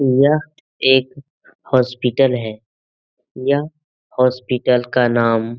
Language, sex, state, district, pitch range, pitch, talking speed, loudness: Hindi, male, Bihar, Jamui, 120-135 Hz, 125 Hz, 95 wpm, -17 LUFS